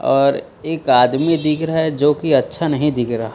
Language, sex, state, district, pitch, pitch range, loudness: Hindi, male, Chhattisgarh, Raipur, 150 Hz, 135-160 Hz, -17 LUFS